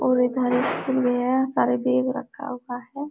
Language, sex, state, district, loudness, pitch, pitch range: Hindi, female, Bihar, Supaul, -24 LUFS, 250 Hz, 245-265 Hz